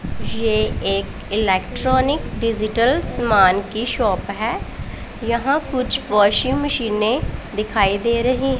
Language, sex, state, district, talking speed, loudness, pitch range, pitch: Hindi, female, Punjab, Pathankot, 105 wpm, -19 LUFS, 210-255 Hz, 230 Hz